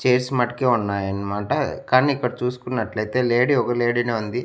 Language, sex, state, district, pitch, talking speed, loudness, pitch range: Telugu, male, Andhra Pradesh, Annamaya, 120 Hz, 175 wpm, -21 LUFS, 110-125 Hz